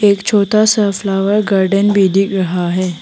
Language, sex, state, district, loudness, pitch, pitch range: Hindi, female, Arunachal Pradesh, Papum Pare, -13 LUFS, 195 Hz, 190-205 Hz